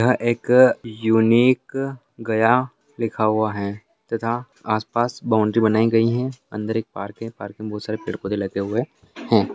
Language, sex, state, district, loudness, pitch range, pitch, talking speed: Hindi, male, Bihar, Gaya, -21 LUFS, 110-120 Hz, 115 Hz, 165 wpm